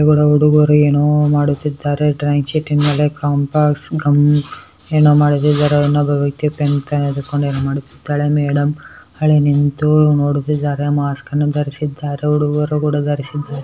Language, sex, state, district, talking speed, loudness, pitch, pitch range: Kannada, male, Karnataka, Bellary, 115 wpm, -15 LUFS, 145 Hz, 145-150 Hz